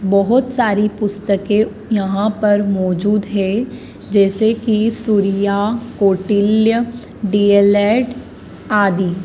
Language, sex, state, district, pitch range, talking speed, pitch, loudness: Hindi, female, Madhya Pradesh, Dhar, 200-220 Hz, 85 wpm, 205 Hz, -15 LUFS